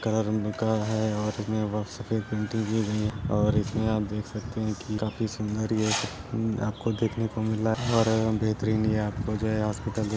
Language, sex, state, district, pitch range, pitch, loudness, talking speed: Hindi, male, Uttar Pradesh, Deoria, 105-110 Hz, 110 Hz, -28 LUFS, 140 wpm